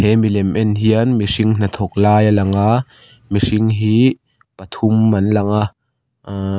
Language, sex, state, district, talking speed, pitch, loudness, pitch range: Mizo, male, Mizoram, Aizawl, 145 wpm, 110 Hz, -15 LUFS, 105-115 Hz